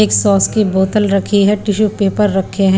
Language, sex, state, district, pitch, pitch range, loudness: Hindi, female, Punjab, Pathankot, 200 Hz, 195-210 Hz, -13 LUFS